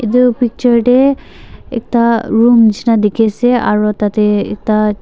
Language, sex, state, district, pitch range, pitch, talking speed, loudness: Nagamese, female, Nagaland, Dimapur, 210-245 Hz, 230 Hz, 130 wpm, -12 LUFS